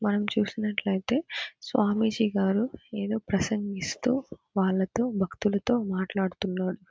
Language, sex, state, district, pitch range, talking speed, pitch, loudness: Telugu, female, Andhra Pradesh, Krishna, 190-220 Hz, 80 wpm, 205 Hz, -28 LUFS